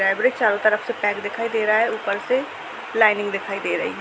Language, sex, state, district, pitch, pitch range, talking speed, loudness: Hindi, female, Uttar Pradesh, Jyotiba Phule Nagar, 215 Hz, 205-230 Hz, 255 wpm, -21 LUFS